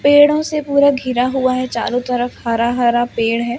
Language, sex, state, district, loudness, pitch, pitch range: Hindi, female, Madhya Pradesh, Umaria, -16 LUFS, 250 Hz, 240-280 Hz